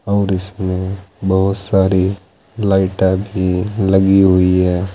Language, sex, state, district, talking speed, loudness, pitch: Hindi, male, Uttar Pradesh, Saharanpur, 110 wpm, -15 LUFS, 95 Hz